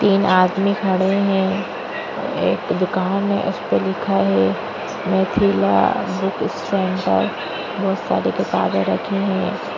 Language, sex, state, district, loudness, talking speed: Hindi, female, Chhattisgarh, Bastar, -19 LUFS, 125 wpm